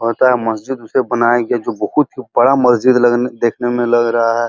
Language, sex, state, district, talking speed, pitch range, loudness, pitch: Hindi, male, Uttar Pradesh, Muzaffarnagar, 225 wpm, 120-130 Hz, -14 LUFS, 120 Hz